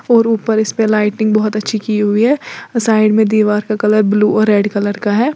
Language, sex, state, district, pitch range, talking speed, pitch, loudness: Hindi, female, Uttar Pradesh, Lalitpur, 210-220 Hz, 235 wpm, 215 Hz, -14 LUFS